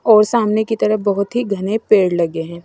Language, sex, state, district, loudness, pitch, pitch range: Hindi, female, Himachal Pradesh, Shimla, -16 LUFS, 210 Hz, 185-220 Hz